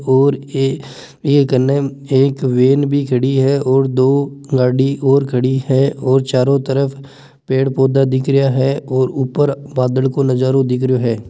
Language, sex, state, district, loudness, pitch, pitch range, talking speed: Marwari, male, Rajasthan, Nagaur, -15 LUFS, 135 Hz, 130-140 Hz, 160 wpm